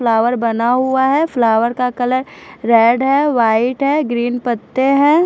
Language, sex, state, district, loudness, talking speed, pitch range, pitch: Hindi, female, Punjab, Fazilka, -15 LUFS, 160 wpm, 235-270 Hz, 250 Hz